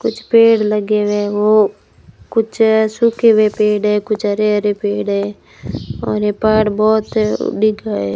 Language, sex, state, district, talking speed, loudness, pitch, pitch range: Hindi, female, Rajasthan, Bikaner, 160 wpm, -15 LUFS, 210 Hz, 210-220 Hz